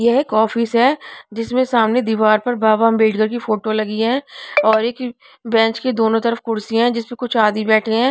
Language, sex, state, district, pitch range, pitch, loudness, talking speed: Hindi, female, Punjab, Pathankot, 220-245 Hz, 230 Hz, -17 LUFS, 205 wpm